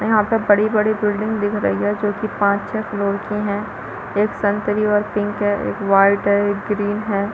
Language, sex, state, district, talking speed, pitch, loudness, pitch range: Hindi, female, Chhattisgarh, Balrampur, 205 wpm, 205 Hz, -19 LUFS, 205-210 Hz